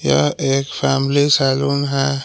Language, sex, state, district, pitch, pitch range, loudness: Hindi, male, Jharkhand, Palamu, 135 Hz, 135-140 Hz, -17 LUFS